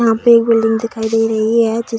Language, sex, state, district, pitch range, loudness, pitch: Hindi, female, Bihar, Darbhanga, 225-230 Hz, -14 LUFS, 225 Hz